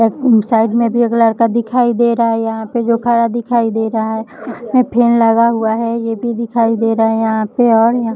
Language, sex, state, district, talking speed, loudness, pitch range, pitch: Hindi, female, Bihar, Jahanabad, 230 wpm, -14 LUFS, 225-235 Hz, 230 Hz